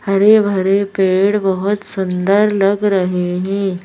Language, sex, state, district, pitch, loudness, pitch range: Hindi, female, Madhya Pradesh, Bhopal, 195 Hz, -15 LUFS, 190-205 Hz